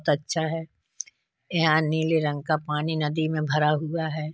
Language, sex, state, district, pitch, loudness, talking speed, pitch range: Hindi, male, Uttar Pradesh, Hamirpur, 155 Hz, -25 LUFS, 180 wpm, 150-160 Hz